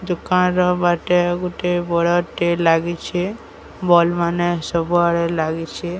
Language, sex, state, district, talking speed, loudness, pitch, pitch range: Odia, female, Odisha, Sambalpur, 80 wpm, -19 LUFS, 175 Hz, 170-180 Hz